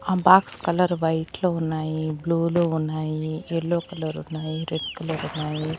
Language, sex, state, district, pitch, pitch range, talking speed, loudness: Telugu, female, Andhra Pradesh, Annamaya, 160 Hz, 155-170 Hz, 155 wpm, -24 LUFS